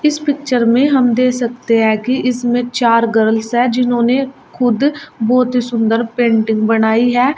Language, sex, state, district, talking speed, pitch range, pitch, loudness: Hindi, female, Uttar Pradesh, Shamli, 160 wpm, 230-255 Hz, 245 Hz, -14 LUFS